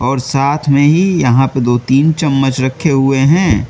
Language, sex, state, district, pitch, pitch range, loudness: Hindi, male, Mizoram, Aizawl, 135 Hz, 130-150 Hz, -12 LUFS